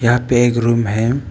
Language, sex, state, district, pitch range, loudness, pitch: Hindi, male, Arunachal Pradesh, Papum Pare, 115-120 Hz, -15 LUFS, 120 Hz